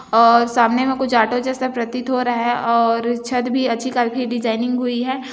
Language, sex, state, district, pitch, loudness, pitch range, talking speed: Hindi, female, Chhattisgarh, Bilaspur, 245 Hz, -18 LUFS, 235-255 Hz, 200 wpm